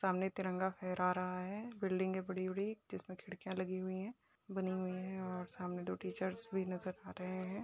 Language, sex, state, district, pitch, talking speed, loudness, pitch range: Hindi, female, Bihar, Darbhanga, 185 Hz, 195 wpm, -41 LUFS, 185-190 Hz